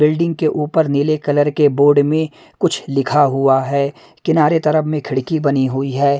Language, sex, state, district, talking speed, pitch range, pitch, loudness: Hindi, male, Punjab, Pathankot, 185 wpm, 140-155 Hz, 145 Hz, -16 LUFS